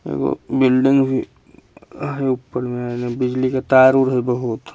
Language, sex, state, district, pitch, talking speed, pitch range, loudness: Hindi, male, Bihar, Vaishali, 130 Hz, 150 wpm, 120-130 Hz, -18 LUFS